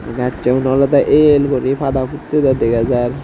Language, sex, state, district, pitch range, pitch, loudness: Chakma, male, Tripura, Dhalai, 125-140 Hz, 135 Hz, -15 LUFS